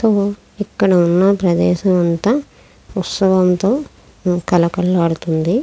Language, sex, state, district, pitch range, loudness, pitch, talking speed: Telugu, female, Andhra Pradesh, Krishna, 175-200 Hz, -16 LUFS, 185 Hz, 65 wpm